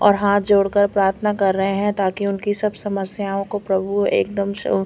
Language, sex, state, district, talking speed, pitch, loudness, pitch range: Hindi, female, Chandigarh, Chandigarh, 210 wpm, 200 Hz, -19 LUFS, 195-205 Hz